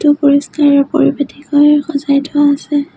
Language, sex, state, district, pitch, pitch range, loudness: Assamese, female, Assam, Sonitpur, 285 Hz, 285-295 Hz, -12 LUFS